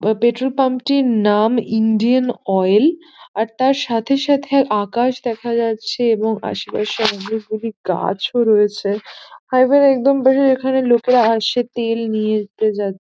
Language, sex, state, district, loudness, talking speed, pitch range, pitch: Bengali, female, West Bengal, North 24 Parganas, -17 LUFS, 150 wpm, 215-255 Hz, 230 Hz